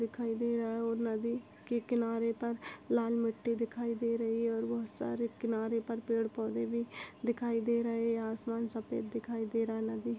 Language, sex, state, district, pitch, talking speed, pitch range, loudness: Hindi, female, Chhattisgarh, Bastar, 230 Hz, 205 wpm, 225-235 Hz, -35 LUFS